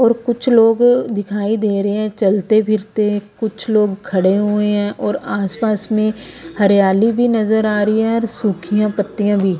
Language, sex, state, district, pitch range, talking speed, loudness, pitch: Hindi, female, Punjab, Kapurthala, 205-220 Hz, 175 wpm, -16 LUFS, 210 Hz